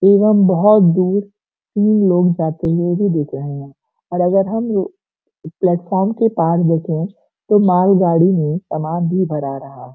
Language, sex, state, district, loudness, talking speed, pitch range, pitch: Hindi, female, Uttar Pradesh, Gorakhpur, -16 LUFS, 155 wpm, 165-195 Hz, 180 Hz